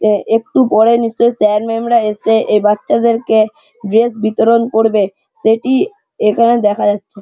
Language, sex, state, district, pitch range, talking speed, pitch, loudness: Bengali, male, West Bengal, Malda, 210-235 Hz, 135 wpm, 225 Hz, -13 LUFS